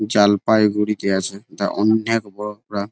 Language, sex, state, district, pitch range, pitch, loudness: Bengali, male, West Bengal, Jalpaiguri, 100-105 Hz, 105 Hz, -19 LUFS